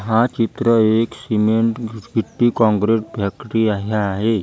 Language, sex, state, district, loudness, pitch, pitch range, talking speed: Marathi, female, Maharashtra, Gondia, -18 LUFS, 110 Hz, 105-115 Hz, 135 wpm